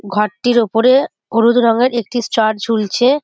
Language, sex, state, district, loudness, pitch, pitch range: Bengali, female, West Bengal, Jhargram, -14 LUFS, 230 Hz, 220-245 Hz